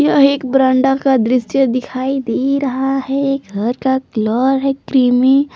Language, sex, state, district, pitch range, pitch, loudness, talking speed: Hindi, female, Jharkhand, Palamu, 255-275 Hz, 265 Hz, -15 LUFS, 160 wpm